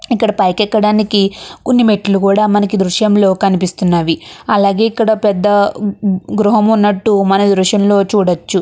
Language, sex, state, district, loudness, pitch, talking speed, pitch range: Telugu, female, Andhra Pradesh, Chittoor, -12 LUFS, 205 Hz, 140 wpm, 195-215 Hz